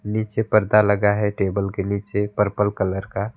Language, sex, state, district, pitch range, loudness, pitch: Hindi, male, West Bengal, Alipurduar, 100-105 Hz, -21 LUFS, 105 Hz